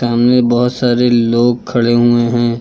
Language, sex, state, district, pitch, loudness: Hindi, male, Uttar Pradesh, Lucknow, 120 Hz, -12 LUFS